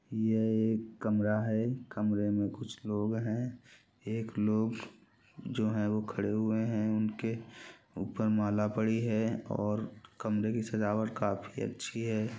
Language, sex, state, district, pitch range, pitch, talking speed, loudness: Hindi, male, Bihar, Gopalganj, 105-110 Hz, 110 Hz, 150 wpm, -33 LUFS